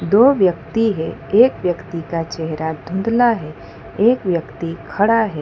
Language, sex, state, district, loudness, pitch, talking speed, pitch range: Hindi, female, Gujarat, Valsad, -18 LUFS, 180 Hz, 145 wpm, 165-225 Hz